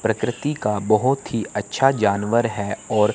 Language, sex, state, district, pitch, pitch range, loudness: Hindi, male, Chandigarh, Chandigarh, 110 Hz, 105-120 Hz, -21 LUFS